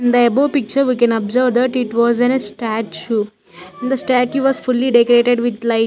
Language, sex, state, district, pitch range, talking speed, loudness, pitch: English, female, Chandigarh, Chandigarh, 225-255 Hz, 215 wpm, -15 LUFS, 240 Hz